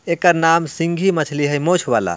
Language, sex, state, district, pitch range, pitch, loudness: Bhojpuri, male, Bihar, Muzaffarpur, 145-170 Hz, 165 Hz, -17 LUFS